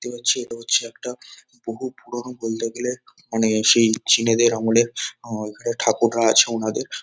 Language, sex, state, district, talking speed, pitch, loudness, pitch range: Bengali, male, West Bengal, Kolkata, 155 wpm, 115 Hz, -20 LUFS, 115-120 Hz